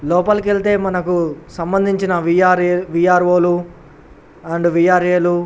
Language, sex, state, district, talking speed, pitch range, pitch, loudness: Telugu, male, Telangana, Nalgonda, 145 wpm, 170-180 Hz, 180 Hz, -15 LUFS